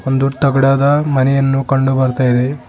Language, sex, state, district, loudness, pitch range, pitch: Kannada, male, Karnataka, Bidar, -14 LUFS, 130-140 Hz, 135 Hz